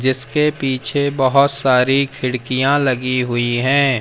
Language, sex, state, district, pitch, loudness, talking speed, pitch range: Hindi, male, Madhya Pradesh, Umaria, 130 Hz, -16 LUFS, 120 wpm, 130-140 Hz